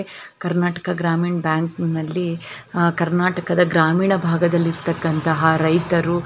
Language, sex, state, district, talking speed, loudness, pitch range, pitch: Kannada, female, Karnataka, Bellary, 95 wpm, -19 LUFS, 165-175 Hz, 170 Hz